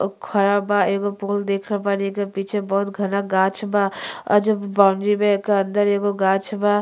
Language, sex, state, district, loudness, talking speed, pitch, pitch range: Bhojpuri, female, Uttar Pradesh, Ghazipur, -20 LUFS, 195 wpm, 200 Hz, 195-205 Hz